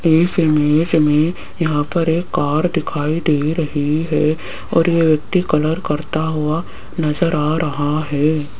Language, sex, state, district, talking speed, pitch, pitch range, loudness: Hindi, female, Rajasthan, Jaipur, 145 wpm, 155 Hz, 150-165 Hz, -17 LUFS